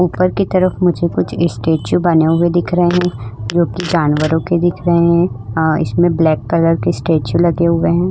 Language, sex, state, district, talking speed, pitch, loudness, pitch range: Hindi, female, Uttar Pradesh, Budaun, 190 wpm, 170 Hz, -14 LUFS, 160-175 Hz